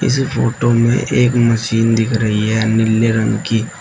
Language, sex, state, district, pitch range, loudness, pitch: Hindi, male, Uttar Pradesh, Shamli, 110-120 Hz, -15 LUFS, 115 Hz